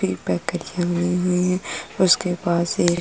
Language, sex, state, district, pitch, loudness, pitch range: Hindi, female, Uttar Pradesh, Jalaun, 180 Hz, -21 LUFS, 175-180 Hz